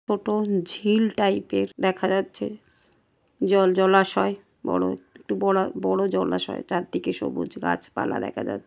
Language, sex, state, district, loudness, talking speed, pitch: Bengali, female, West Bengal, Dakshin Dinajpur, -24 LUFS, 130 wpm, 185 Hz